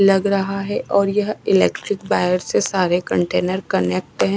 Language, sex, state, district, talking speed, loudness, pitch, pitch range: Hindi, female, Odisha, Nuapada, 165 wpm, -19 LUFS, 195 Hz, 180-195 Hz